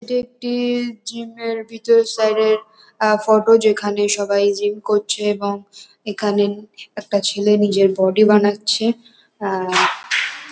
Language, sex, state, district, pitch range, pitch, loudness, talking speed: Bengali, female, West Bengal, Kolkata, 205-225 Hz, 210 Hz, -18 LUFS, 125 wpm